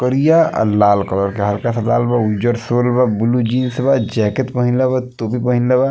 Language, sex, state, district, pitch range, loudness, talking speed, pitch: Bhojpuri, male, Bihar, East Champaran, 110-125 Hz, -16 LUFS, 225 wpm, 120 Hz